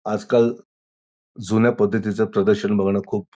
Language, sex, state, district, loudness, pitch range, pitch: Marathi, male, Maharashtra, Pune, -20 LUFS, 100-120 Hz, 110 Hz